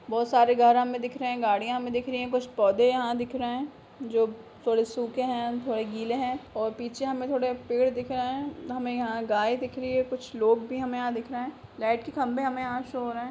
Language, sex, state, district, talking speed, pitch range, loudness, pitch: Hindi, female, Bihar, Begusarai, 250 wpm, 235-255 Hz, -28 LUFS, 245 Hz